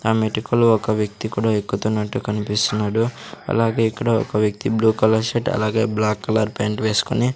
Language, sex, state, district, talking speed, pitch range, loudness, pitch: Telugu, male, Andhra Pradesh, Sri Satya Sai, 155 wpm, 105-115 Hz, -20 LUFS, 110 Hz